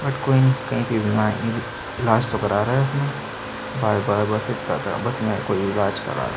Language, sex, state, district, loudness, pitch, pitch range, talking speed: Hindi, male, Chhattisgarh, Sukma, -22 LUFS, 110 Hz, 105-130 Hz, 200 wpm